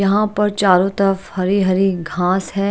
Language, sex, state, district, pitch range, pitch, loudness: Hindi, female, Chhattisgarh, Raipur, 185-200 Hz, 195 Hz, -17 LUFS